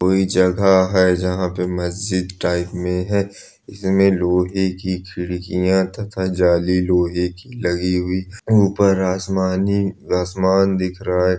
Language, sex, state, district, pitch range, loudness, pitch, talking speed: Hindi, male, Chhattisgarh, Balrampur, 90-95 Hz, -19 LUFS, 95 Hz, 135 wpm